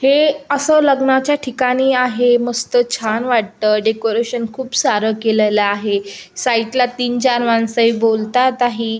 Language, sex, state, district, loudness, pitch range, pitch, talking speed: Marathi, female, Maharashtra, Aurangabad, -16 LUFS, 220-260 Hz, 240 Hz, 135 wpm